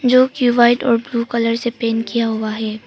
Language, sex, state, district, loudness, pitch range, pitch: Hindi, female, Arunachal Pradesh, Papum Pare, -17 LUFS, 225-240 Hz, 235 Hz